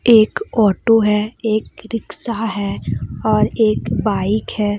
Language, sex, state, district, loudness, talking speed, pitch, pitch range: Hindi, female, Jharkhand, Deoghar, -18 LUFS, 125 wpm, 215 Hz, 205-225 Hz